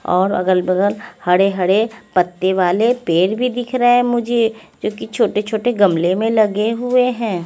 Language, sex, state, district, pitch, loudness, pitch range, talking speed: Hindi, female, Chandigarh, Chandigarh, 215 Hz, -17 LUFS, 185-240 Hz, 170 wpm